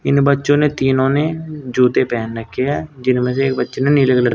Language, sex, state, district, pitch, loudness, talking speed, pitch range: Hindi, male, Uttar Pradesh, Saharanpur, 135 Hz, -16 LUFS, 235 wpm, 125-145 Hz